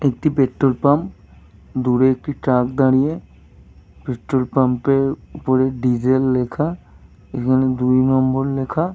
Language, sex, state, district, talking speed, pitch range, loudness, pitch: Bengali, male, Jharkhand, Jamtara, 115 wpm, 125-135 Hz, -18 LUFS, 130 Hz